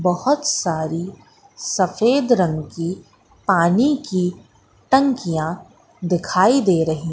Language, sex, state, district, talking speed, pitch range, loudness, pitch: Hindi, female, Madhya Pradesh, Katni, 95 wpm, 170-255 Hz, -19 LUFS, 180 Hz